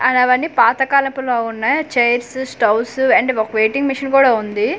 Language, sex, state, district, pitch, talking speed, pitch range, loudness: Telugu, female, Andhra Pradesh, Manyam, 250 Hz, 160 wpm, 230-270 Hz, -15 LUFS